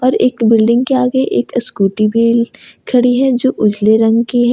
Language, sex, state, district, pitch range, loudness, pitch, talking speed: Hindi, female, Jharkhand, Ranchi, 225-255 Hz, -13 LUFS, 240 Hz, 200 wpm